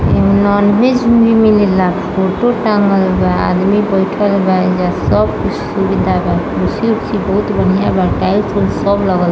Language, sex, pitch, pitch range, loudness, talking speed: Bhojpuri, female, 200 Hz, 185-210 Hz, -13 LUFS, 150 wpm